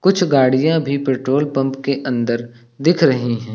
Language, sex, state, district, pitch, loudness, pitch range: Hindi, male, Uttar Pradesh, Lucknow, 135 Hz, -17 LUFS, 120-145 Hz